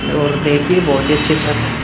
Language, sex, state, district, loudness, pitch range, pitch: Hindi, male, Uttar Pradesh, Muzaffarnagar, -15 LUFS, 145-150 Hz, 145 Hz